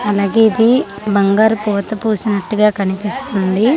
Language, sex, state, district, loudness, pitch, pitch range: Telugu, female, Andhra Pradesh, Manyam, -15 LUFS, 210 Hz, 200-220 Hz